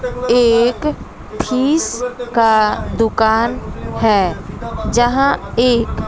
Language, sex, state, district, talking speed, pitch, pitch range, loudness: Hindi, female, Bihar, West Champaran, 70 wpm, 240 Hz, 230-250 Hz, -15 LUFS